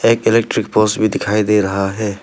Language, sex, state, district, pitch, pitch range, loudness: Hindi, male, Arunachal Pradesh, Papum Pare, 105 Hz, 100-110 Hz, -15 LUFS